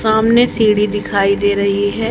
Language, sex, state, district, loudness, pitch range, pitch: Hindi, female, Haryana, Charkhi Dadri, -14 LUFS, 200-225 Hz, 210 Hz